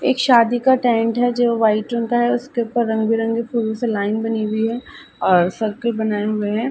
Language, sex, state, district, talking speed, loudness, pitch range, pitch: Hindi, female, Uttar Pradesh, Ghazipur, 225 wpm, -18 LUFS, 220-240 Hz, 230 Hz